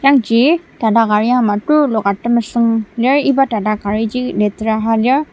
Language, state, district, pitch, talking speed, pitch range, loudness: Ao, Nagaland, Dimapur, 230 Hz, 145 wpm, 220-265 Hz, -14 LUFS